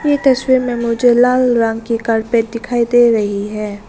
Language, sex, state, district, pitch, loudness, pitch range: Hindi, female, Arunachal Pradesh, Lower Dibang Valley, 235 Hz, -14 LUFS, 225-245 Hz